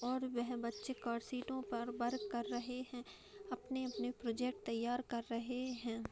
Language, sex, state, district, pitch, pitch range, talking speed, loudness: Hindi, female, Bihar, Jahanabad, 245 Hz, 235-255 Hz, 145 wpm, -42 LUFS